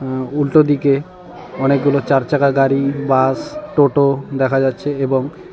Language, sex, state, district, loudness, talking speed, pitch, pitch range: Bengali, male, West Bengal, Cooch Behar, -16 LUFS, 120 wpm, 140 Hz, 135-145 Hz